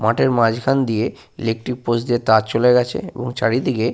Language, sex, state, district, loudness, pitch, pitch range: Bengali, male, Jharkhand, Sahebganj, -19 LUFS, 120 Hz, 115-125 Hz